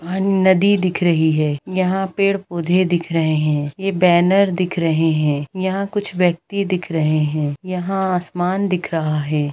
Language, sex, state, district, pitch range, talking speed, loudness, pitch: Hindi, female, Bihar, Gaya, 160-190 Hz, 165 wpm, -18 LUFS, 180 Hz